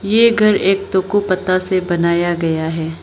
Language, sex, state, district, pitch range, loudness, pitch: Hindi, female, Arunachal Pradesh, Lower Dibang Valley, 170-200 Hz, -16 LUFS, 185 Hz